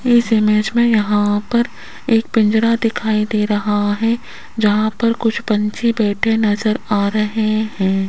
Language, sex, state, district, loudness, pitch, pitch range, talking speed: Hindi, female, Rajasthan, Jaipur, -17 LUFS, 215 Hz, 210-230 Hz, 150 wpm